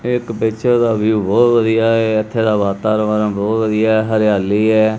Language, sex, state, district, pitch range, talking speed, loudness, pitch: Punjabi, male, Punjab, Kapurthala, 105-115 Hz, 180 wpm, -15 LUFS, 110 Hz